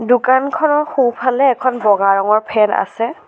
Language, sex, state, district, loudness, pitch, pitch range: Assamese, female, Assam, Sonitpur, -14 LUFS, 250 Hz, 215-270 Hz